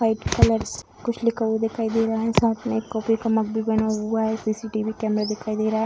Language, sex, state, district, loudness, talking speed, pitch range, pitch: Hindi, female, Bihar, Darbhanga, -23 LUFS, 275 wpm, 220-225 Hz, 220 Hz